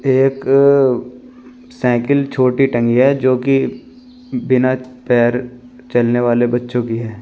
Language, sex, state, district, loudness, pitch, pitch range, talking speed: Hindi, male, Uttar Pradesh, Shamli, -15 LUFS, 130 Hz, 120-140 Hz, 115 wpm